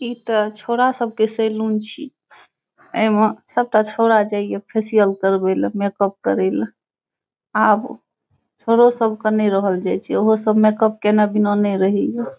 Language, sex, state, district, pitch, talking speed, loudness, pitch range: Maithili, female, Bihar, Saharsa, 215 Hz, 170 wpm, -18 LUFS, 205-230 Hz